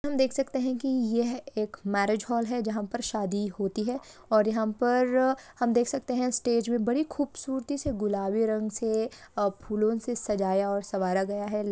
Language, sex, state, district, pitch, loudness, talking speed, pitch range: Hindi, female, Chhattisgarh, Sukma, 230 Hz, -28 LUFS, 190 wpm, 210-250 Hz